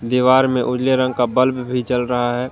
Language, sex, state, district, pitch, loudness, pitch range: Hindi, male, Jharkhand, Garhwa, 125 Hz, -17 LUFS, 125-130 Hz